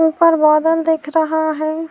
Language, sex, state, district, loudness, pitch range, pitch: Urdu, female, Bihar, Saharsa, -15 LUFS, 310-325 Hz, 320 Hz